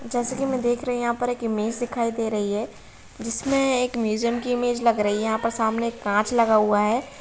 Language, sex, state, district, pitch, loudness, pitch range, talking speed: Hindi, female, Bihar, Gopalganj, 235 Hz, -23 LUFS, 220-245 Hz, 240 wpm